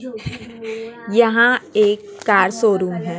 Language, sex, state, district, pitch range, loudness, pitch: Hindi, female, Chhattisgarh, Raipur, 205-245 Hz, -16 LUFS, 230 Hz